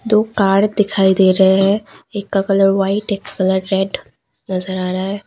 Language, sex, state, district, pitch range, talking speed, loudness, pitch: Hindi, female, Assam, Kamrup Metropolitan, 190-205 Hz, 205 wpm, -16 LUFS, 195 Hz